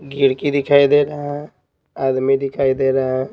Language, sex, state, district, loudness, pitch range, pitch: Hindi, male, Bihar, Patna, -17 LUFS, 135-145 Hz, 135 Hz